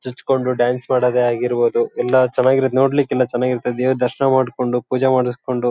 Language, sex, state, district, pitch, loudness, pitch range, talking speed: Kannada, male, Karnataka, Shimoga, 125 Hz, -18 LUFS, 125-130 Hz, 170 wpm